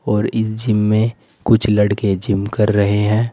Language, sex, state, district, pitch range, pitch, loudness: Hindi, male, Uttar Pradesh, Saharanpur, 105-110 Hz, 105 Hz, -16 LUFS